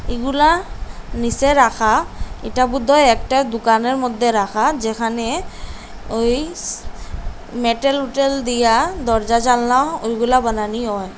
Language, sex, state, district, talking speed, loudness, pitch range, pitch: Bengali, female, Assam, Hailakandi, 100 wpm, -17 LUFS, 230-275 Hz, 240 Hz